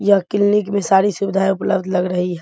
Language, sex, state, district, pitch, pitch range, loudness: Hindi, female, Bihar, Bhagalpur, 195 Hz, 185-200 Hz, -17 LUFS